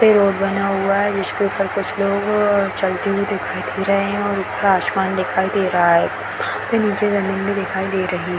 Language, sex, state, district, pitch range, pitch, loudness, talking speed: Hindi, female, Bihar, Darbhanga, 190-200 Hz, 195 Hz, -19 LUFS, 220 wpm